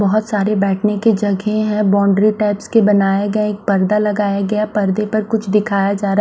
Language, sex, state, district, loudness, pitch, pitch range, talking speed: Hindi, female, Bihar, Kaimur, -16 LUFS, 210 Hz, 200-210 Hz, 215 wpm